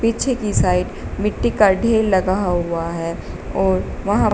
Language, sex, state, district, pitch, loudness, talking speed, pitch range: Hindi, female, Uttar Pradesh, Shamli, 190 Hz, -19 LUFS, 150 wpm, 180-215 Hz